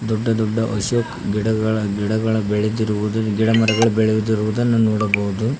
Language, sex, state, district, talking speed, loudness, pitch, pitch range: Kannada, male, Karnataka, Koppal, 105 wpm, -19 LUFS, 110 Hz, 105-115 Hz